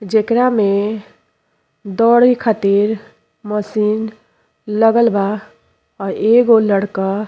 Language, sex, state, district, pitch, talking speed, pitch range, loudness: Bhojpuri, female, Uttar Pradesh, Ghazipur, 215 Hz, 90 wpm, 205-225 Hz, -15 LUFS